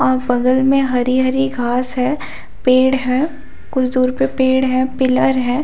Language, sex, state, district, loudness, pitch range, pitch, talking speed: Hindi, female, Jharkhand, Jamtara, -16 LUFS, 255-265 Hz, 260 Hz, 170 wpm